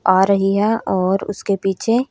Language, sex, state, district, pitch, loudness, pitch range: Hindi, female, Haryana, Rohtak, 195 Hz, -18 LUFS, 190-215 Hz